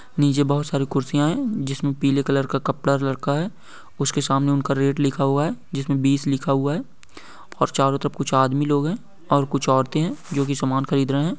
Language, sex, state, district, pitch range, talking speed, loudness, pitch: Hindi, male, Andhra Pradesh, Guntur, 135-145 Hz, 220 wpm, -22 LUFS, 140 Hz